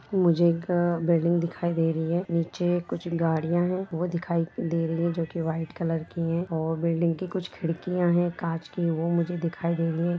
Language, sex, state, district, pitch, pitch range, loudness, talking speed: Hindi, female, Jharkhand, Jamtara, 170 Hz, 165-175 Hz, -27 LUFS, 205 wpm